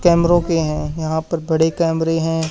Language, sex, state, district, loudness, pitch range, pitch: Hindi, male, Haryana, Charkhi Dadri, -18 LUFS, 160-170 Hz, 165 Hz